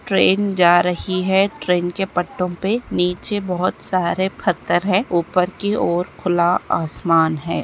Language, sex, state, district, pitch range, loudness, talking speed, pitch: Hindi, female, Bihar, Lakhisarai, 175-190 Hz, -19 LUFS, 150 wpm, 180 Hz